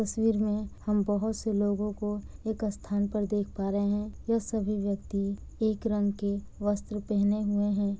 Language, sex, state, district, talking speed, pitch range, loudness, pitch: Hindi, female, Bihar, Kishanganj, 180 wpm, 205-215 Hz, -30 LUFS, 205 Hz